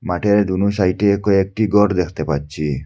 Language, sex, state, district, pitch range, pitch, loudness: Bengali, male, Assam, Hailakandi, 90-105 Hz, 95 Hz, -17 LUFS